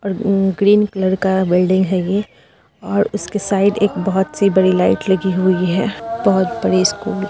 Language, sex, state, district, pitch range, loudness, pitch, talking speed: Hindi, female, Bihar, Purnia, 185-205 Hz, -16 LUFS, 195 Hz, 180 wpm